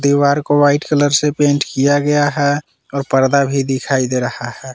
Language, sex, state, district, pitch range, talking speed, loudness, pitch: Hindi, male, Jharkhand, Palamu, 135-145 Hz, 200 wpm, -15 LUFS, 140 Hz